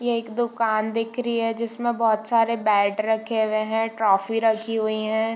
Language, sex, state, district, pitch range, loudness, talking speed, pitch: Hindi, female, Bihar, Darbhanga, 220-230 Hz, -23 LUFS, 190 wpm, 225 Hz